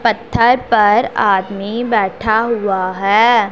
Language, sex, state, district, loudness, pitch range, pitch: Hindi, female, Punjab, Pathankot, -14 LUFS, 195-235 Hz, 220 Hz